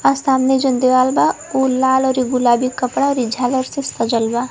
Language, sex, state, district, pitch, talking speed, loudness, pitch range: Bhojpuri, female, Uttar Pradesh, Varanasi, 255 Hz, 200 wpm, -16 LUFS, 250-265 Hz